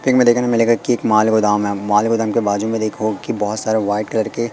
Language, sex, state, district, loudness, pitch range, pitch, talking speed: Hindi, male, Madhya Pradesh, Katni, -17 LUFS, 105-115 Hz, 110 Hz, 280 wpm